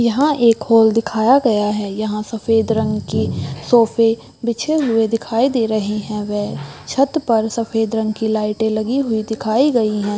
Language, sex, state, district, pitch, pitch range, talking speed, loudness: Hindi, female, Chhattisgarh, Raigarh, 225 Hz, 215-235 Hz, 170 wpm, -17 LUFS